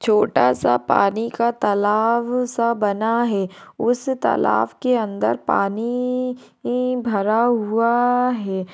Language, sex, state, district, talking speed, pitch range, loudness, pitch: Hindi, female, Rajasthan, Nagaur, 130 wpm, 205-245 Hz, -20 LUFS, 230 Hz